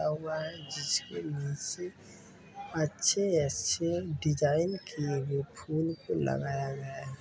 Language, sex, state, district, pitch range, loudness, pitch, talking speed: Hindi, male, Uttar Pradesh, Varanasi, 140-165 Hz, -32 LUFS, 150 Hz, 115 wpm